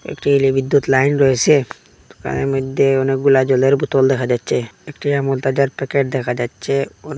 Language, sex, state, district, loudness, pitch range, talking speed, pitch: Bengali, male, Assam, Hailakandi, -17 LUFS, 130-140 Hz, 140 wpm, 135 Hz